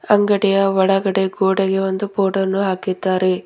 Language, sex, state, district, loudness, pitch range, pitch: Kannada, female, Karnataka, Bidar, -17 LUFS, 190-195 Hz, 195 Hz